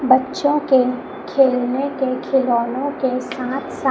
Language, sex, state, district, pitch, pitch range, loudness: Hindi, male, Chhattisgarh, Raipur, 265 Hz, 255-275 Hz, -19 LUFS